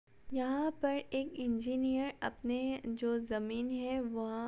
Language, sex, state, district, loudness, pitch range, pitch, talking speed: Hindi, female, Uttar Pradesh, Budaun, -37 LUFS, 235-265 Hz, 255 Hz, 135 wpm